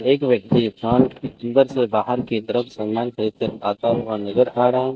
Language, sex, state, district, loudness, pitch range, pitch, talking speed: Hindi, male, Chandigarh, Chandigarh, -20 LUFS, 110-125 Hz, 120 Hz, 180 wpm